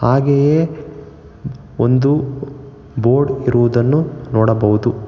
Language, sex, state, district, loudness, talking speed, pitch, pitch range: Kannada, male, Karnataka, Bangalore, -15 LUFS, 60 wpm, 135 Hz, 120-140 Hz